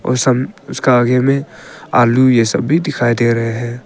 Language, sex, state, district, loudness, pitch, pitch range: Hindi, male, Arunachal Pradesh, Papum Pare, -14 LUFS, 125 Hz, 120-130 Hz